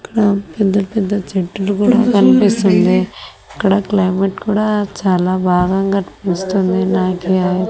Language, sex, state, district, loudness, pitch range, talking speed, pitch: Telugu, female, Andhra Pradesh, Annamaya, -15 LUFS, 185-205 Hz, 95 wpm, 195 Hz